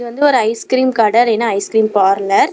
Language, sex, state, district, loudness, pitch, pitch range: Tamil, female, Tamil Nadu, Namakkal, -14 LUFS, 225 Hz, 205-240 Hz